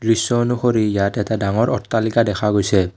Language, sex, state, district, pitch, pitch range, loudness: Assamese, male, Assam, Kamrup Metropolitan, 110 Hz, 100-115 Hz, -18 LUFS